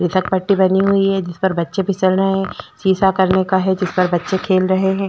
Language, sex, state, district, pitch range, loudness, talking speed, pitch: Hindi, female, Chhattisgarh, Korba, 185-195 Hz, -16 LUFS, 235 wpm, 190 Hz